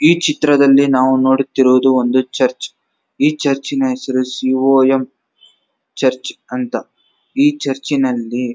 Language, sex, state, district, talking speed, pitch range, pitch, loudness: Kannada, male, Karnataka, Dharwad, 120 wpm, 130-140 Hz, 130 Hz, -15 LUFS